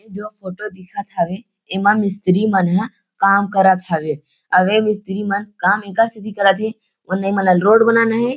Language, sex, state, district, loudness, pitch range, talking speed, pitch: Chhattisgarhi, male, Chhattisgarh, Rajnandgaon, -16 LUFS, 190-215 Hz, 210 wpm, 200 Hz